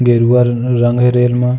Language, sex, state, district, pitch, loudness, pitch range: Hindi, male, Uttar Pradesh, Jalaun, 125 Hz, -12 LUFS, 120-125 Hz